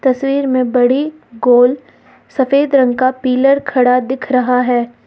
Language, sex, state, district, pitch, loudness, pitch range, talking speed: Hindi, female, Uttar Pradesh, Lucknow, 255 Hz, -13 LUFS, 250-275 Hz, 140 wpm